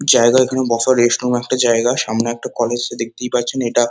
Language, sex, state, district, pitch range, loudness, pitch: Bengali, male, West Bengal, Kolkata, 120-125 Hz, -16 LUFS, 120 Hz